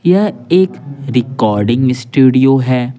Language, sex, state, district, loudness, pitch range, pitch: Hindi, male, Bihar, Patna, -13 LUFS, 125-140 Hz, 130 Hz